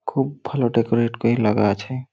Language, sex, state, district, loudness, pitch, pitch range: Bengali, male, West Bengal, Malda, -21 LUFS, 115 Hz, 115-130 Hz